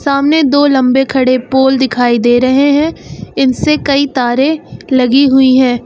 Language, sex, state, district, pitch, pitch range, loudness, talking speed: Hindi, female, Uttar Pradesh, Lucknow, 265 Hz, 255-280 Hz, -10 LUFS, 155 wpm